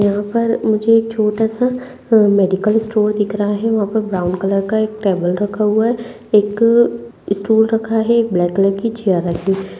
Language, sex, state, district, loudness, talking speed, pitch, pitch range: Hindi, female, Bihar, Purnia, -16 LUFS, 175 wpm, 215 Hz, 195-225 Hz